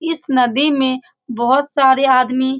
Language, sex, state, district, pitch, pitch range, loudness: Hindi, female, Bihar, Saran, 265 Hz, 255-280 Hz, -15 LUFS